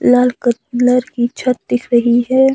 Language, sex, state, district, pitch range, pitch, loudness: Hindi, female, Himachal Pradesh, Shimla, 240-250 Hz, 245 Hz, -15 LUFS